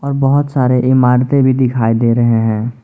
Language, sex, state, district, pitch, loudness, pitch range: Hindi, male, Jharkhand, Ranchi, 125 Hz, -13 LUFS, 120-135 Hz